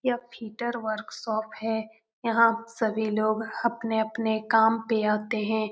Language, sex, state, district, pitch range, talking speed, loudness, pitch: Hindi, female, Bihar, Jamui, 220-230 Hz, 125 wpm, -27 LUFS, 220 Hz